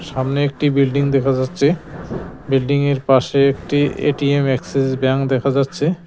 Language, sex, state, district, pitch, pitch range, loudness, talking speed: Bengali, male, West Bengal, Cooch Behar, 140 Hz, 135-145 Hz, -17 LUFS, 140 wpm